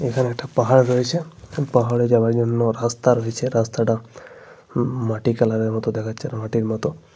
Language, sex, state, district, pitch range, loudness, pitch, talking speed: Bengali, male, Jharkhand, Sahebganj, 115-125 Hz, -21 LUFS, 120 Hz, 140 wpm